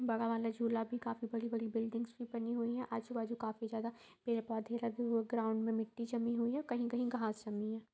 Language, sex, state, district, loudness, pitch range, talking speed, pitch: Hindi, female, Bihar, East Champaran, -39 LUFS, 225-235 Hz, 235 wpm, 230 Hz